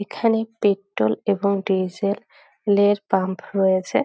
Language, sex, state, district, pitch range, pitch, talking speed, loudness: Bengali, female, West Bengal, North 24 Parganas, 190-205 Hz, 200 Hz, 120 wpm, -21 LUFS